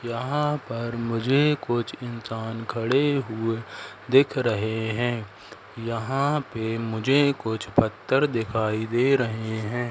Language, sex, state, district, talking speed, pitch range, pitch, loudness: Hindi, male, Madhya Pradesh, Katni, 115 wpm, 110-135 Hz, 115 Hz, -25 LUFS